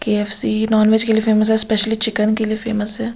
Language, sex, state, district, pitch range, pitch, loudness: Hindi, female, Bihar, Katihar, 215-220 Hz, 220 Hz, -16 LUFS